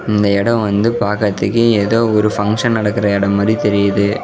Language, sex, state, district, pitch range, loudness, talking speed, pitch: Tamil, male, Tamil Nadu, Namakkal, 100-115 Hz, -14 LUFS, 155 wpm, 105 Hz